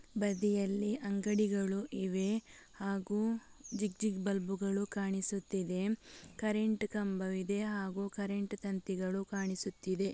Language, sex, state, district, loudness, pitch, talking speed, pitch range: Kannada, female, Karnataka, Mysore, -36 LUFS, 200 Hz, 90 wpm, 195-210 Hz